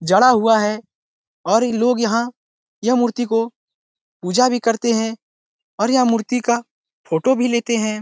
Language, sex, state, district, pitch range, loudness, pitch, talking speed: Hindi, male, Bihar, Araria, 220-245 Hz, -18 LUFS, 230 Hz, 155 wpm